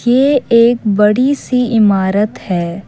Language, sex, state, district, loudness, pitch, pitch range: Hindi, female, Assam, Kamrup Metropolitan, -12 LUFS, 225 Hz, 200-250 Hz